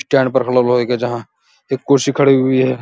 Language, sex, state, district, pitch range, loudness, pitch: Hindi, male, Uttar Pradesh, Muzaffarnagar, 125-135 Hz, -15 LUFS, 130 Hz